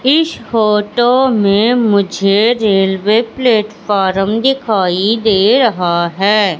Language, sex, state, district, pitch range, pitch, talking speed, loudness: Hindi, female, Madhya Pradesh, Katni, 195-235 Hz, 210 Hz, 90 wpm, -12 LUFS